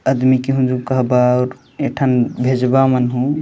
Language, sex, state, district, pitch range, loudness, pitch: Chhattisgarhi, male, Chhattisgarh, Jashpur, 125-130 Hz, -16 LUFS, 130 Hz